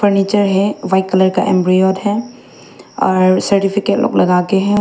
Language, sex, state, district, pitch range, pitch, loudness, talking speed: Hindi, female, Arunachal Pradesh, Papum Pare, 185-205 Hz, 195 Hz, -14 LUFS, 160 wpm